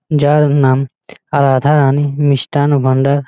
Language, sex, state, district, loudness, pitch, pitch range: Bengali, male, West Bengal, Malda, -13 LUFS, 140 Hz, 135-145 Hz